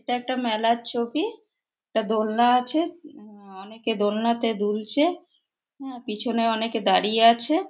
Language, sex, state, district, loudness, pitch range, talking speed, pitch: Bengali, female, West Bengal, Purulia, -23 LUFS, 220-290 Hz, 125 wpm, 235 Hz